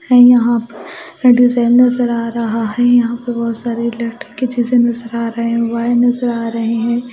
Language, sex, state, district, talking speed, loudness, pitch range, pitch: Hindi, female, Odisha, Malkangiri, 195 wpm, -14 LUFS, 230-245 Hz, 235 Hz